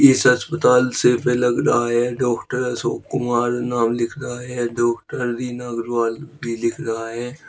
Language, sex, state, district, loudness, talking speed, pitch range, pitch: Hindi, male, Uttar Pradesh, Shamli, -20 LUFS, 175 wpm, 120-125 Hz, 120 Hz